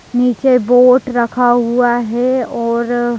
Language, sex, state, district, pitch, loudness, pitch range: Hindi, female, Bihar, Begusarai, 245 Hz, -13 LUFS, 240-250 Hz